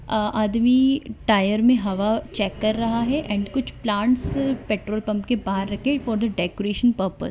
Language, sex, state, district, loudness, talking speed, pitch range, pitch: Hindi, female, West Bengal, Kolkata, -22 LUFS, 190 wpm, 205-245 Hz, 215 Hz